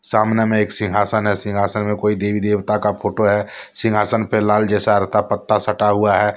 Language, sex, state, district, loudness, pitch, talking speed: Hindi, male, Jharkhand, Deoghar, -18 LUFS, 105 Hz, 195 wpm